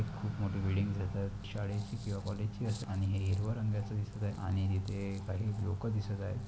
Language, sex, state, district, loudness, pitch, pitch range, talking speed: Marathi, male, Maharashtra, Pune, -36 LUFS, 100 Hz, 100-105 Hz, 195 wpm